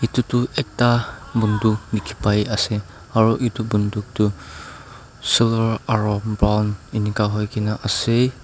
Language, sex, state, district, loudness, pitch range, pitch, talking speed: Nagamese, male, Nagaland, Dimapur, -20 LUFS, 105-115 Hz, 110 Hz, 120 wpm